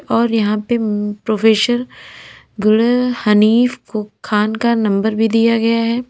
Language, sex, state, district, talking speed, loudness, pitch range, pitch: Hindi, female, Uttar Pradesh, Lalitpur, 130 wpm, -15 LUFS, 210-235 Hz, 225 Hz